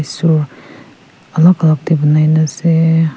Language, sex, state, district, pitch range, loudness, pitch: Nagamese, female, Nagaland, Kohima, 150-165 Hz, -12 LUFS, 160 Hz